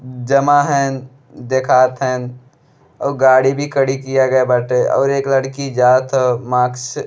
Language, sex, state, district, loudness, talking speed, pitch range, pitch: Bhojpuri, male, Uttar Pradesh, Deoria, -15 LUFS, 155 wpm, 125-140 Hz, 130 Hz